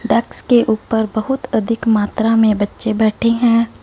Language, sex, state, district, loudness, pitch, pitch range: Hindi, female, Punjab, Fazilka, -16 LUFS, 225 Hz, 220-230 Hz